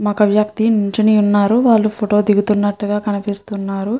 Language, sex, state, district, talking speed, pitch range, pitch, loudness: Telugu, female, Andhra Pradesh, Srikakulam, 120 wpm, 205-215 Hz, 210 Hz, -15 LUFS